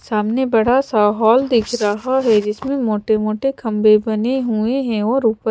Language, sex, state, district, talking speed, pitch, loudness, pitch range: Hindi, female, Chandigarh, Chandigarh, 175 wpm, 225 Hz, -17 LUFS, 215-255 Hz